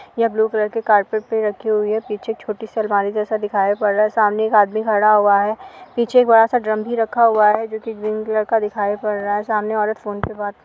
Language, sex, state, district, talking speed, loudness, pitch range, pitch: Hindi, female, Uttar Pradesh, Jalaun, 275 wpm, -18 LUFS, 210-225 Hz, 215 Hz